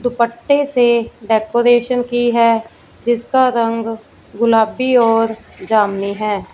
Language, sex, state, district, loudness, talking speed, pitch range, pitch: Hindi, female, Punjab, Fazilka, -15 LUFS, 100 wpm, 225-240 Hz, 235 Hz